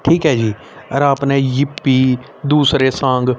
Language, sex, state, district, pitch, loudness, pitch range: Hindi, male, Haryana, Rohtak, 135 Hz, -15 LUFS, 130-140 Hz